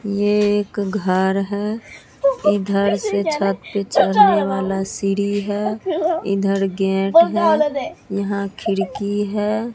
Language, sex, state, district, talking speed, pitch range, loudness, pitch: Hindi, female, Bihar, Katihar, 110 wpm, 195-210 Hz, -19 LUFS, 200 Hz